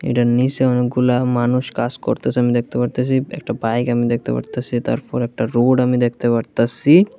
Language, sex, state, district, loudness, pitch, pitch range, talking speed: Bengali, male, Tripura, West Tripura, -18 LUFS, 120 Hz, 120-125 Hz, 165 wpm